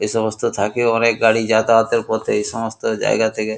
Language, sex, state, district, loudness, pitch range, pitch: Bengali, male, West Bengal, Kolkata, -17 LUFS, 110-115 Hz, 110 Hz